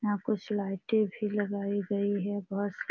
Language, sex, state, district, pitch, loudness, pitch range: Hindi, female, Bihar, Jamui, 205 Hz, -31 LUFS, 200-210 Hz